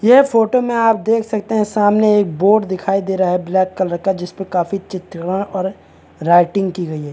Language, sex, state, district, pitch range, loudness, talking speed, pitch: Hindi, male, Chhattisgarh, Bastar, 180-215 Hz, -16 LUFS, 210 wpm, 195 Hz